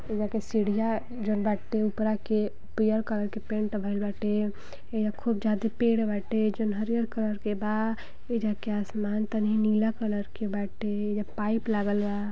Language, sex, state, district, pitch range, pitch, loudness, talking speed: Bhojpuri, female, Uttar Pradesh, Gorakhpur, 210-220 Hz, 215 Hz, -29 LUFS, 170 wpm